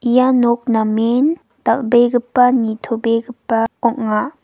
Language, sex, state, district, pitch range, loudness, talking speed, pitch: Garo, female, Meghalaya, West Garo Hills, 230-250 Hz, -16 LUFS, 80 wpm, 240 Hz